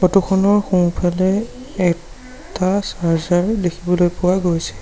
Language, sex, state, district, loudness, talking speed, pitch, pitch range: Assamese, male, Assam, Sonitpur, -18 LUFS, 100 wpm, 185 Hz, 175-195 Hz